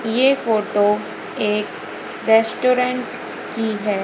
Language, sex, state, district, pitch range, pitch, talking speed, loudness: Hindi, female, Haryana, Rohtak, 210-250 Hz, 225 Hz, 90 wpm, -19 LUFS